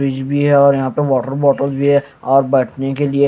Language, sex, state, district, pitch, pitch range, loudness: Hindi, male, Punjab, Kapurthala, 140 Hz, 135-140 Hz, -15 LUFS